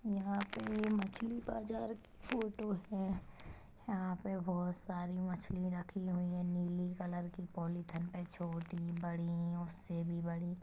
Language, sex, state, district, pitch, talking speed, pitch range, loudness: Hindi, female, Chhattisgarh, Kabirdham, 180 Hz, 135 wpm, 175-200 Hz, -41 LUFS